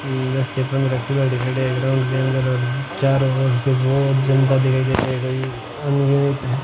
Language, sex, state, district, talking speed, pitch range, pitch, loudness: Hindi, male, Rajasthan, Bikaner, 145 wpm, 130-135 Hz, 130 Hz, -19 LUFS